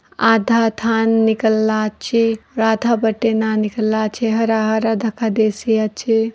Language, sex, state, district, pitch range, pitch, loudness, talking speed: Halbi, female, Chhattisgarh, Bastar, 220-225 Hz, 225 Hz, -17 LUFS, 130 wpm